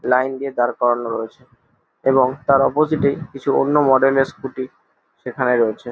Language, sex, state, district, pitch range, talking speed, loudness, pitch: Bengali, male, West Bengal, Jalpaiguri, 120-135 Hz, 160 wpm, -18 LUFS, 130 Hz